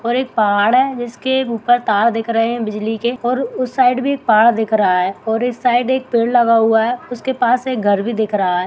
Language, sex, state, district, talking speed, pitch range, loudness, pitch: Hindi, female, Bihar, Begusarai, 255 wpm, 220-250 Hz, -16 LUFS, 235 Hz